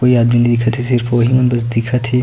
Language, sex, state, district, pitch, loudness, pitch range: Chhattisgarhi, male, Chhattisgarh, Sukma, 120 Hz, -14 LUFS, 120-125 Hz